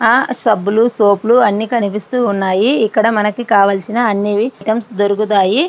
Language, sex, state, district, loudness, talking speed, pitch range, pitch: Telugu, female, Andhra Pradesh, Srikakulam, -14 LUFS, 125 wpm, 205-235 Hz, 215 Hz